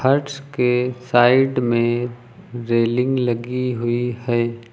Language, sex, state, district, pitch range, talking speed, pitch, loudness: Hindi, male, Uttar Pradesh, Lucknow, 120-125 Hz, 100 wpm, 120 Hz, -19 LUFS